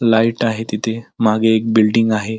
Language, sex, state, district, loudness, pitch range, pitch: Marathi, male, Maharashtra, Pune, -16 LUFS, 110-115 Hz, 110 Hz